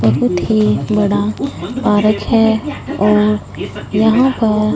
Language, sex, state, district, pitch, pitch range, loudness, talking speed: Hindi, female, Punjab, Fazilka, 210 Hz, 205-220 Hz, -14 LUFS, 100 wpm